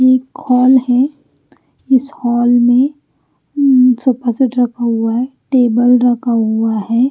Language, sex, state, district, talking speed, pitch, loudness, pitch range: Hindi, female, Bihar, Patna, 85 wpm, 245 Hz, -13 LUFS, 240-260 Hz